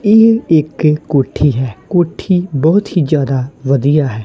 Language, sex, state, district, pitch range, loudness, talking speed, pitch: Punjabi, male, Punjab, Kapurthala, 140-175 Hz, -13 LUFS, 140 wpm, 155 Hz